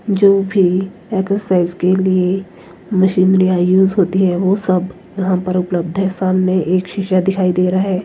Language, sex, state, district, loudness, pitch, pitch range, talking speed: Hindi, female, Himachal Pradesh, Shimla, -15 LUFS, 185 Hz, 185-195 Hz, 165 wpm